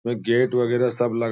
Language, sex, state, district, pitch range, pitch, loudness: Hindi, male, Bihar, Bhagalpur, 115-125 Hz, 120 Hz, -21 LUFS